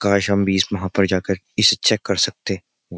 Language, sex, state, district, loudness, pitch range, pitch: Hindi, male, Uttar Pradesh, Jyotiba Phule Nagar, -19 LUFS, 95-100 Hz, 95 Hz